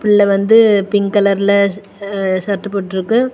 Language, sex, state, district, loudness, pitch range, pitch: Tamil, female, Tamil Nadu, Kanyakumari, -14 LUFS, 195-205 Hz, 200 Hz